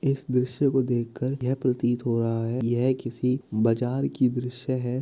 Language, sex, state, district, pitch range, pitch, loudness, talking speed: Hindi, male, Bihar, Kishanganj, 120-130 Hz, 125 Hz, -26 LUFS, 190 wpm